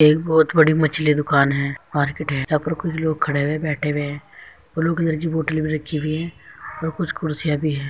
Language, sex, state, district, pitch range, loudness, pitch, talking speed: Hindi, male, Uttar Pradesh, Muzaffarnagar, 145-160 Hz, -21 LUFS, 155 Hz, 245 wpm